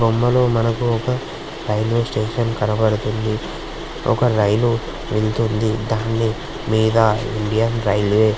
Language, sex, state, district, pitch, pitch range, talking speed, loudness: Telugu, male, Andhra Pradesh, Srikakulam, 110 Hz, 110-115 Hz, 100 wpm, -19 LUFS